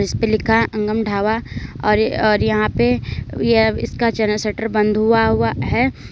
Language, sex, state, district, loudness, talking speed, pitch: Hindi, female, Uttar Pradesh, Lalitpur, -18 LUFS, 165 wpm, 210 Hz